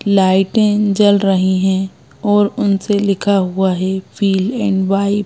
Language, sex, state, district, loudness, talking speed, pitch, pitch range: Hindi, female, Madhya Pradesh, Bhopal, -15 LUFS, 150 wpm, 195 Hz, 190-205 Hz